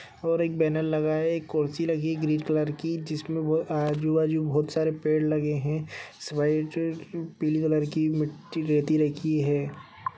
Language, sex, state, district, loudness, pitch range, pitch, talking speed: Hindi, male, Bihar, Bhagalpur, -27 LUFS, 150-160 Hz, 155 Hz, 155 wpm